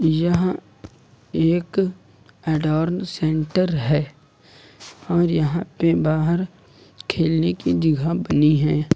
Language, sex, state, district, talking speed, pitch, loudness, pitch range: Hindi, male, Uttar Pradesh, Lucknow, 95 wpm, 160 Hz, -21 LUFS, 155-175 Hz